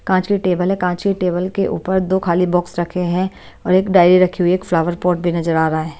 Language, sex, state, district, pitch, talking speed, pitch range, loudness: Hindi, female, Bihar, Patna, 180 Hz, 280 wpm, 175-185 Hz, -17 LUFS